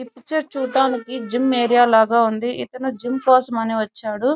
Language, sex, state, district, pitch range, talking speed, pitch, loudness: Telugu, female, Andhra Pradesh, Chittoor, 230-260 Hz, 180 wpm, 245 Hz, -19 LUFS